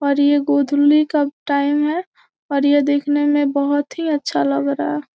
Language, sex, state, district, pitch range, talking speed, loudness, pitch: Hindi, female, Bihar, Gopalganj, 280-290 Hz, 185 wpm, -18 LUFS, 285 Hz